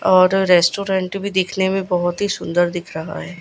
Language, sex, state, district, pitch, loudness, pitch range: Hindi, female, Gujarat, Gandhinagar, 185 Hz, -18 LUFS, 175-195 Hz